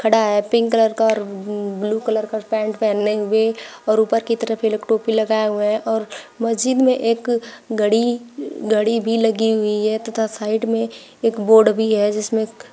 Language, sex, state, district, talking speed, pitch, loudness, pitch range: Hindi, female, Uttar Pradesh, Shamli, 180 wpm, 220 Hz, -19 LUFS, 215-225 Hz